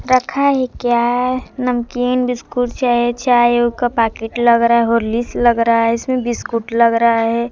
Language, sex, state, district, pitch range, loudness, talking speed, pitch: Hindi, female, Bihar, Kaimur, 230-250 Hz, -16 LUFS, 175 wpm, 240 Hz